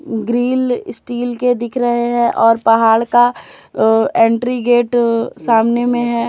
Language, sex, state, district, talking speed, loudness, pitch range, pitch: Hindi, female, Jharkhand, Deoghar, 135 wpm, -14 LUFS, 230-245 Hz, 240 Hz